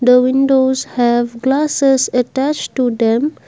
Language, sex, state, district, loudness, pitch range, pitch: English, female, Assam, Kamrup Metropolitan, -15 LUFS, 245-270 Hz, 260 Hz